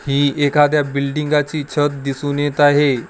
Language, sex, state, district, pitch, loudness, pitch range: Marathi, male, Maharashtra, Gondia, 145 Hz, -17 LUFS, 140-145 Hz